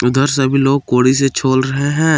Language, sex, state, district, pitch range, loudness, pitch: Hindi, male, Jharkhand, Palamu, 130-140 Hz, -14 LUFS, 135 Hz